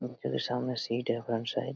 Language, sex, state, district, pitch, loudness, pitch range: Hindi, male, Jharkhand, Sahebganj, 120 Hz, -33 LUFS, 115-125 Hz